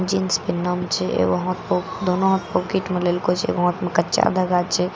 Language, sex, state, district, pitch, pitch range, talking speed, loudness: Maithili, female, Bihar, Katihar, 180 Hz, 175-185 Hz, 215 wpm, -21 LUFS